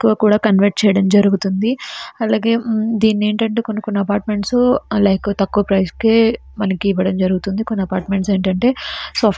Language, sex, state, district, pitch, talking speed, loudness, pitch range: Telugu, female, Andhra Pradesh, Srikakulam, 210 Hz, 50 wpm, -16 LUFS, 195-225 Hz